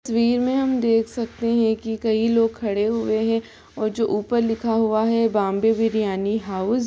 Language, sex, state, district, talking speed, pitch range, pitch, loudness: Hindi, female, Bihar, Gopalganj, 190 wpm, 220-230 Hz, 225 Hz, -21 LUFS